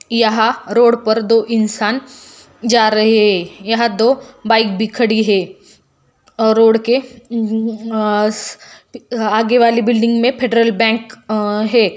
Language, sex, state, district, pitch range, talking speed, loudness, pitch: Hindi, female, Jharkhand, Jamtara, 215-235 Hz, 120 wpm, -14 LUFS, 225 Hz